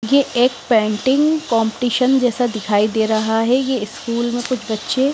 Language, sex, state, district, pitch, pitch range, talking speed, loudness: Hindi, female, Himachal Pradesh, Shimla, 240 Hz, 220-255 Hz, 165 wpm, -17 LUFS